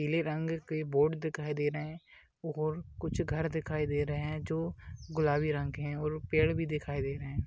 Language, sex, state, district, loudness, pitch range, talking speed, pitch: Hindi, male, Rajasthan, Churu, -34 LUFS, 145-160 Hz, 215 wpm, 155 Hz